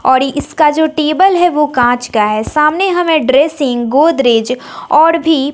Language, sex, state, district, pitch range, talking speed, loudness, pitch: Hindi, female, Bihar, West Champaran, 260-320 Hz, 160 wpm, -11 LUFS, 295 Hz